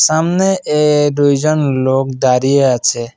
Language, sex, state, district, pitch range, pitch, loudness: Bengali, male, Assam, Kamrup Metropolitan, 130-150 Hz, 140 Hz, -13 LUFS